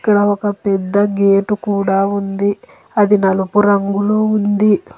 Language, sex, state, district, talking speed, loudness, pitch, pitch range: Telugu, female, Telangana, Hyderabad, 110 wpm, -15 LUFS, 200 Hz, 200-205 Hz